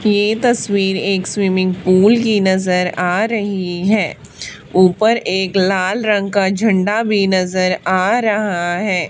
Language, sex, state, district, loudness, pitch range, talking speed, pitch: Hindi, female, Haryana, Charkhi Dadri, -15 LUFS, 185-215 Hz, 140 wpm, 195 Hz